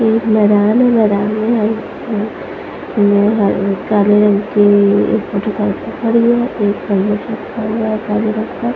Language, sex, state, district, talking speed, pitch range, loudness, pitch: Hindi, female, Punjab, Fazilka, 130 wpm, 205-225 Hz, -14 LUFS, 215 Hz